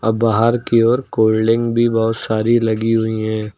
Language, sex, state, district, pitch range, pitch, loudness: Hindi, male, Uttar Pradesh, Lucknow, 110-115 Hz, 115 Hz, -16 LUFS